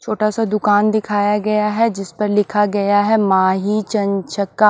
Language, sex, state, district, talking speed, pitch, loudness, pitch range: Hindi, female, Odisha, Nuapada, 165 wpm, 210 Hz, -17 LUFS, 200-215 Hz